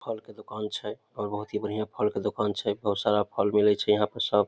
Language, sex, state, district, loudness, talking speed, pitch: Maithili, male, Bihar, Samastipur, -28 LUFS, 270 wpm, 105 Hz